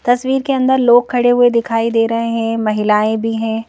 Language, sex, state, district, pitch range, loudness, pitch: Hindi, female, Madhya Pradesh, Bhopal, 225-245 Hz, -14 LUFS, 230 Hz